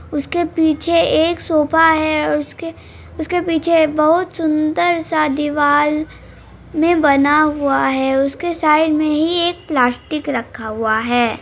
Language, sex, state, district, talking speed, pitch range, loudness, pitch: Hindi, male, Bihar, Araria, 140 wpm, 290-330 Hz, -16 LUFS, 310 Hz